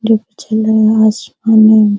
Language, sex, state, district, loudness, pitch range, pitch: Hindi, female, Bihar, Araria, -11 LUFS, 215-220 Hz, 220 Hz